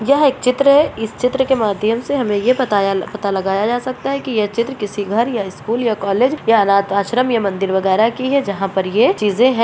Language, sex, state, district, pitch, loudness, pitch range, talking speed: Hindi, female, Bihar, Purnia, 225 Hz, -16 LUFS, 200-255 Hz, 250 wpm